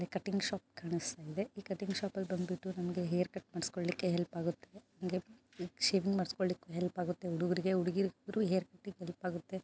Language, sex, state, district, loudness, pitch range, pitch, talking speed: Kannada, female, Karnataka, Mysore, -37 LUFS, 175-195 Hz, 185 Hz, 145 wpm